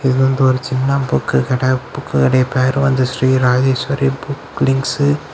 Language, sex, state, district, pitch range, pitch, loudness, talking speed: Tamil, male, Tamil Nadu, Kanyakumari, 130-135 Hz, 130 Hz, -16 LUFS, 170 wpm